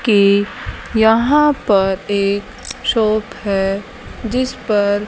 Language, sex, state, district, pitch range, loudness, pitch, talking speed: Hindi, female, Haryana, Charkhi Dadri, 200-240 Hz, -16 LUFS, 215 Hz, 95 wpm